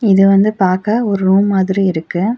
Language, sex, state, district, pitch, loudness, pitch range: Tamil, female, Tamil Nadu, Nilgiris, 195 Hz, -13 LUFS, 190-205 Hz